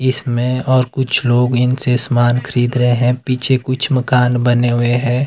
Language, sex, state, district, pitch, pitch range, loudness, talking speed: Hindi, male, Himachal Pradesh, Shimla, 125 Hz, 120-130 Hz, -15 LUFS, 170 wpm